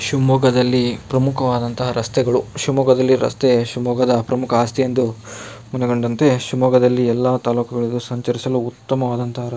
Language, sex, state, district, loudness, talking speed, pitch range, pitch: Kannada, male, Karnataka, Shimoga, -18 LUFS, 95 wpm, 120-130 Hz, 125 Hz